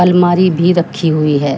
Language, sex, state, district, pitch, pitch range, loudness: Hindi, female, Uttar Pradesh, Shamli, 175 Hz, 155-180 Hz, -12 LUFS